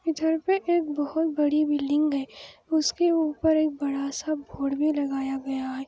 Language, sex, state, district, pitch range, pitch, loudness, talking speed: Hindi, female, Andhra Pradesh, Anantapur, 275-320 Hz, 300 Hz, -26 LUFS, 175 wpm